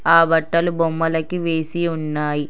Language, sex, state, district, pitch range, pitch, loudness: Telugu, male, Telangana, Hyderabad, 160-170 Hz, 165 Hz, -19 LUFS